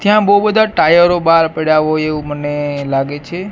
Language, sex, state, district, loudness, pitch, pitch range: Gujarati, male, Gujarat, Gandhinagar, -13 LUFS, 160 Hz, 145-190 Hz